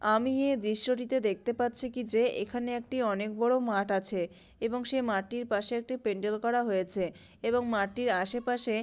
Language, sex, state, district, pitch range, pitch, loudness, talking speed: Bengali, female, West Bengal, Malda, 205-245 Hz, 235 Hz, -30 LUFS, 170 wpm